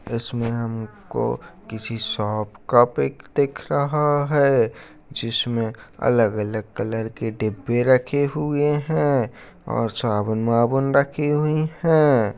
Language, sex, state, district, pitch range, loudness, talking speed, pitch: Hindi, male, Bihar, Darbhanga, 110-145 Hz, -22 LUFS, 105 wpm, 120 Hz